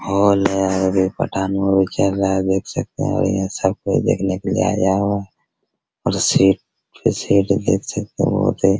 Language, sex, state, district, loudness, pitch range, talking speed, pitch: Hindi, male, Bihar, Araria, -18 LUFS, 95-100 Hz, 205 wpm, 95 Hz